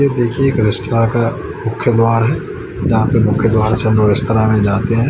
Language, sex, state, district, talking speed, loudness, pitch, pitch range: Hindi, male, Chandigarh, Chandigarh, 210 wpm, -14 LUFS, 115 Hz, 110-120 Hz